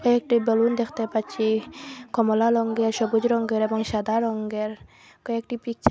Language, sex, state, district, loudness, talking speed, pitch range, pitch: Bengali, female, Assam, Hailakandi, -24 LUFS, 140 wpm, 220-235 Hz, 230 Hz